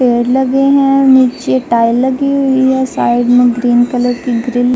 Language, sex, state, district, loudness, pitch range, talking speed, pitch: Hindi, female, Uttar Pradesh, Jalaun, -11 LUFS, 245-265 Hz, 190 wpm, 250 Hz